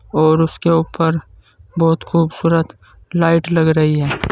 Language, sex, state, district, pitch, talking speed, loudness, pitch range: Hindi, male, Uttar Pradesh, Saharanpur, 165 Hz, 125 wpm, -16 LUFS, 155-165 Hz